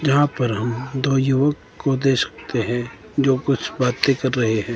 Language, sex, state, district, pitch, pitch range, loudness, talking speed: Hindi, male, Himachal Pradesh, Shimla, 130 Hz, 120-140 Hz, -21 LUFS, 190 wpm